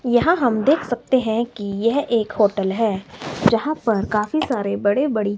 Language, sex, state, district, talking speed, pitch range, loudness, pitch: Hindi, male, Himachal Pradesh, Shimla, 180 wpm, 205-255 Hz, -20 LUFS, 225 Hz